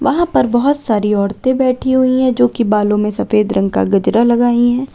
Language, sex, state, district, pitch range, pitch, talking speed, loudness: Hindi, female, Uttar Pradesh, Lalitpur, 210-260 Hz, 240 Hz, 220 wpm, -14 LUFS